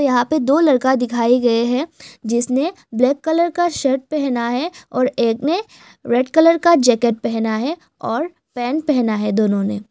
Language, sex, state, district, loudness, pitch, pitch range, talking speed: Hindi, female, Assam, Hailakandi, -18 LUFS, 260 Hz, 235-310 Hz, 175 wpm